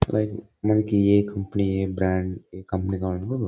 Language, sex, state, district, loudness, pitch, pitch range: Telugu, male, Karnataka, Bellary, -24 LUFS, 100 Hz, 95-105 Hz